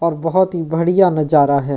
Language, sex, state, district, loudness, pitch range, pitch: Hindi, female, Delhi, New Delhi, -15 LUFS, 150-175 Hz, 165 Hz